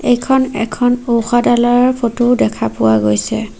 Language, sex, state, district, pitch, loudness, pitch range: Assamese, female, Assam, Sonitpur, 240 Hz, -14 LUFS, 220-245 Hz